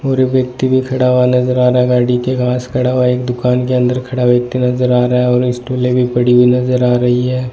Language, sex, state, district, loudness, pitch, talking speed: Hindi, male, Rajasthan, Bikaner, -13 LUFS, 125 Hz, 270 wpm